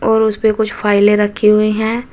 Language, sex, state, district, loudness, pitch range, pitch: Hindi, female, Uttar Pradesh, Shamli, -13 LUFS, 210-220 Hz, 215 Hz